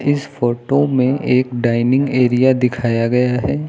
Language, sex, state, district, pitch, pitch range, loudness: Hindi, male, Uttar Pradesh, Lucknow, 125 Hz, 120-135 Hz, -16 LUFS